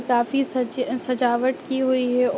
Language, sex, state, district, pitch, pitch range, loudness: Hindi, female, Uttar Pradesh, Ghazipur, 255 Hz, 245-260 Hz, -23 LUFS